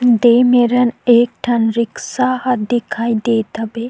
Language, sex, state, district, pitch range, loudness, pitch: Chhattisgarhi, female, Chhattisgarh, Sukma, 230-245 Hz, -15 LUFS, 235 Hz